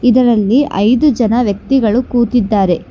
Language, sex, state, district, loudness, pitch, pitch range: Kannada, female, Karnataka, Bangalore, -12 LUFS, 240 Hz, 210-250 Hz